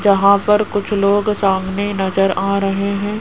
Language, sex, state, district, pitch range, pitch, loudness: Hindi, female, Rajasthan, Jaipur, 195-205 Hz, 200 Hz, -16 LUFS